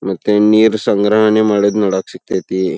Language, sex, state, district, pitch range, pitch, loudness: Kannada, male, Karnataka, Belgaum, 95-110 Hz, 105 Hz, -13 LUFS